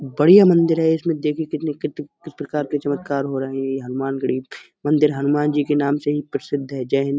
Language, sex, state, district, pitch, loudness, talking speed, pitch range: Hindi, male, Uttar Pradesh, Budaun, 145 Hz, -20 LUFS, 235 wpm, 140-155 Hz